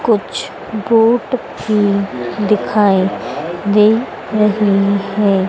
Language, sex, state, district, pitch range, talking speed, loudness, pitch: Hindi, female, Madhya Pradesh, Dhar, 200-215 Hz, 75 wpm, -15 LUFS, 210 Hz